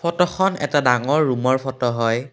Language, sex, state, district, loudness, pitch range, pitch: Assamese, male, Assam, Kamrup Metropolitan, -19 LUFS, 125-170 Hz, 135 Hz